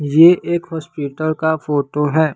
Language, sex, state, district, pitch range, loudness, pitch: Hindi, male, Bihar, West Champaran, 150-160 Hz, -16 LUFS, 155 Hz